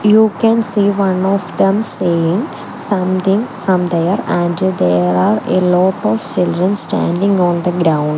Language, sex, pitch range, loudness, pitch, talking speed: English, female, 175-200 Hz, -14 LUFS, 185 Hz, 155 wpm